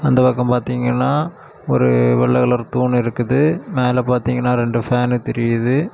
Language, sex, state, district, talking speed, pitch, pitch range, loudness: Tamil, male, Tamil Nadu, Kanyakumari, 130 wpm, 125 Hz, 120-130 Hz, -17 LUFS